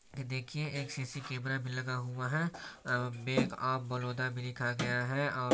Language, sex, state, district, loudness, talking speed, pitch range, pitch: Hindi, male, Chhattisgarh, Balrampur, -36 LUFS, 195 wpm, 125-135 Hz, 130 Hz